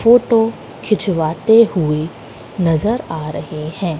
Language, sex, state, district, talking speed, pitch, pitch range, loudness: Hindi, female, Madhya Pradesh, Katni, 105 wpm, 170 Hz, 155-220 Hz, -16 LUFS